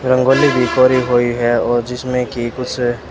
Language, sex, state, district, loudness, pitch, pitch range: Hindi, male, Rajasthan, Bikaner, -15 LUFS, 125 Hz, 120-130 Hz